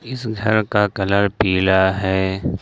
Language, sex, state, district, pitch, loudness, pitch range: Hindi, male, Jharkhand, Ranchi, 100 Hz, -18 LUFS, 95-110 Hz